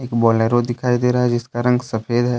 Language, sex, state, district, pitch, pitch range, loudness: Hindi, male, Jharkhand, Deoghar, 120 Hz, 120-125 Hz, -18 LUFS